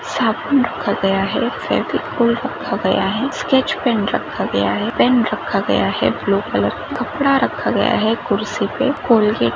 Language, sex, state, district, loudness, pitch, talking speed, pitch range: Hindi, female, Rajasthan, Nagaur, -18 LUFS, 235 Hz, 175 wpm, 210-270 Hz